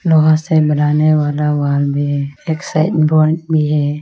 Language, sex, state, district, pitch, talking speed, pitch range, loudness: Hindi, female, Arunachal Pradesh, Lower Dibang Valley, 150 Hz, 180 wpm, 145-155 Hz, -14 LUFS